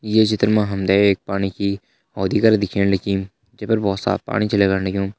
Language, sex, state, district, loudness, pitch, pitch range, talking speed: Hindi, male, Uttarakhand, Uttarkashi, -19 LUFS, 100 Hz, 95-105 Hz, 230 wpm